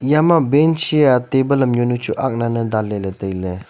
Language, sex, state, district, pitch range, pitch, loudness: Wancho, male, Arunachal Pradesh, Longding, 110-145 Hz, 125 Hz, -17 LUFS